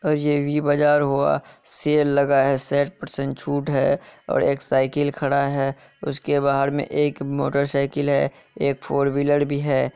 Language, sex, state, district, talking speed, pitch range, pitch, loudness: Hindi, male, Bihar, Kishanganj, 170 wpm, 140-145 Hz, 140 Hz, -22 LUFS